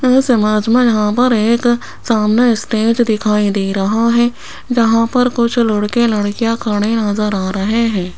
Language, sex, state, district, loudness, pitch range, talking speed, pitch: Hindi, female, Rajasthan, Jaipur, -14 LUFS, 210-235 Hz, 140 wpm, 225 Hz